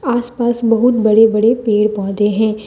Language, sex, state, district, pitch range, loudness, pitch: Hindi, female, Jharkhand, Deoghar, 215-240 Hz, -14 LUFS, 225 Hz